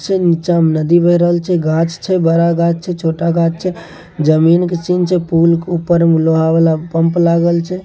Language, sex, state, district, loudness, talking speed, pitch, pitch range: Maithili, male, Bihar, Samastipur, -13 LUFS, 205 wpm, 170 Hz, 165-175 Hz